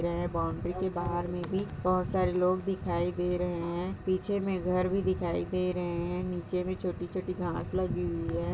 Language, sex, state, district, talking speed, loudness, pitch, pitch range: Hindi, female, Chhattisgarh, Balrampur, 195 wpm, -31 LUFS, 180 Hz, 175-185 Hz